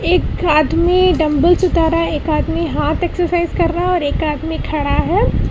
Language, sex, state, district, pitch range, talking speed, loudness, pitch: Hindi, female, Karnataka, Bangalore, 310-350 Hz, 195 wpm, -16 LUFS, 335 Hz